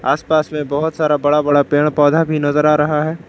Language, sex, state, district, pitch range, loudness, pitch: Hindi, male, Jharkhand, Palamu, 145-155 Hz, -15 LUFS, 150 Hz